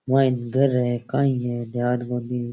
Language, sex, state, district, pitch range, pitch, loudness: Rajasthani, male, Rajasthan, Churu, 120-130 Hz, 125 Hz, -23 LUFS